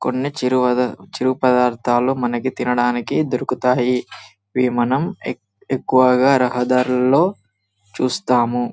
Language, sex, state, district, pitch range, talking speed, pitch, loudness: Telugu, male, Telangana, Karimnagar, 120-130 Hz, 75 wpm, 125 Hz, -18 LUFS